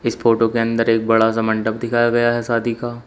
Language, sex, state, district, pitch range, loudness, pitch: Hindi, male, Uttar Pradesh, Shamli, 115-120 Hz, -18 LUFS, 115 Hz